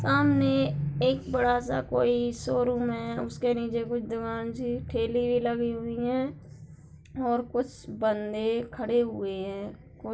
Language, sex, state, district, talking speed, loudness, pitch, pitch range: Hindi, female, Bihar, Darbhanga, 135 wpm, -28 LUFS, 230 Hz, 190-240 Hz